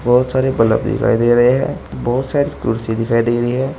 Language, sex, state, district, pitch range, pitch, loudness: Hindi, male, Uttar Pradesh, Saharanpur, 115-130 Hz, 120 Hz, -16 LUFS